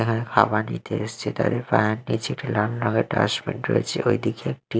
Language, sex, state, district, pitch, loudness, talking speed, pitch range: Bengali, male, Odisha, Malkangiri, 115 Hz, -24 LUFS, 175 wpm, 105-120 Hz